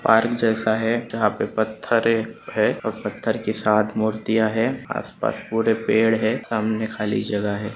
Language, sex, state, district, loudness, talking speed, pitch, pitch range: Hindi, male, Maharashtra, Nagpur, -22 LUFS, 160 wpm, 110 Hz, 110-115 Hz